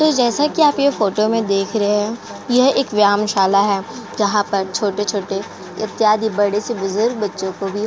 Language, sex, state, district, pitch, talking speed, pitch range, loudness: Hindi, female, Uttar Pradesh, Jyotiba Phule Nagar, 210 Hz, 205 wpm, 200-230 Hz, -17 LUFS